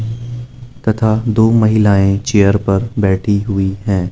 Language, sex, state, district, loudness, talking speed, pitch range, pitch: Hindi, male, Delhi, New Delhi, -14 LUFS, 115 wpm, 100-115 Hz, 105 Hz